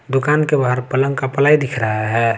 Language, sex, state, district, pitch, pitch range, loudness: Hindi, male, Jharkhand, Garhwa, 135 Hz, 115-140 Hz, -17 LUFS